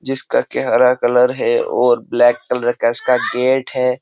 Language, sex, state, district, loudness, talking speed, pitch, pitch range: Hindi, male, Uttar Pradesh, Jyotiba Phule Nagar, -15 LUFS, 180 wpm, 125 Hz, 120-130 Hz